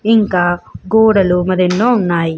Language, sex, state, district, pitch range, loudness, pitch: Telugu, female, Andhra Pradesh, Visakhapatnam, 175-220 Hz, -13 LUFS, 185 Hz